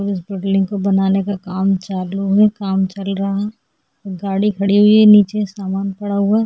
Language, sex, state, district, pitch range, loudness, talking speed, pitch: Hindi, female, Goa, North and South Goa, 195-205 Hz, -16 LUFS, 185 wpm, 195 Hz